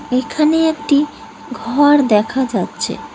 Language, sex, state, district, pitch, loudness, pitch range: Bengali, female, West Bengal, Cooch Behar, 285 Hz, -15 LUFS, 250-295 Hz